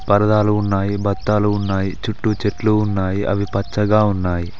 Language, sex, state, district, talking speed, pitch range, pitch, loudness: Telugu, male, Telangana, Mahabubabad, 130 wpm, 100-105 Hz, 100 Hz, -18 LUFS